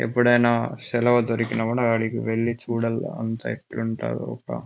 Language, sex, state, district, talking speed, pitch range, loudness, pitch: Telugu, male, Andhra Pradesh, Anantapur, 115 wpm, 115-120 Hz, -24 LUFS, 115 Hz